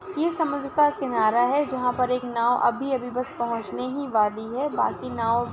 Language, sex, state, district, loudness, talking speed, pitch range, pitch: Hindi, female, Maharashtra, Sindhudurg, -24 LUFS, 195 wpm, 235-285 Hz, 250 Hz